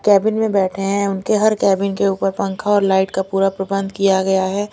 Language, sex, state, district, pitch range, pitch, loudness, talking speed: Hindi, female, Delhi, New Delhi, 190-200 Hz, 195 Hz, -17 LUFS, 230 wpm